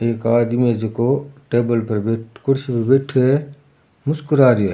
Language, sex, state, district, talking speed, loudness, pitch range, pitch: Rajasthani, male, Rajasthan, Churu, 175 wpm, -18 LUFS, 115-140 Hz, 125 Hz